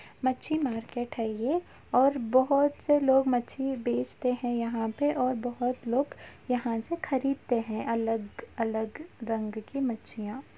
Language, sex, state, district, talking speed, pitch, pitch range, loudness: Hindi, female, Uttar Pradesh, Jalaun, 140 wpm, 250 Hz, 225-270 Hz, -29 LUFS